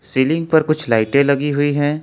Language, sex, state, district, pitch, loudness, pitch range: Hindi, male, Jharkhand, Ranchi, 145 Hz, -16 LUFS, 135-155 Hz